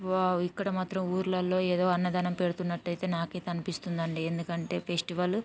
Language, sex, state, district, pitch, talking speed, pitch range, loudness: Telugu, female, Andhra Pradesh, Guntur, 180 Hz, 130 wpm, 175-185 Hz, -31 LUFS